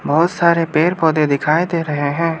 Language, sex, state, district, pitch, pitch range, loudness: Hindi, male, Arunachal Pradesh, Lower Dibang Valley, 165 Hz, 150-170 Hz, -16 LUFS